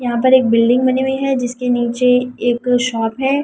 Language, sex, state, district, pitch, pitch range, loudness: Hindi, female, Delhi, New Delhi, 250 Hz, 240-260 Hz, -15 LUFS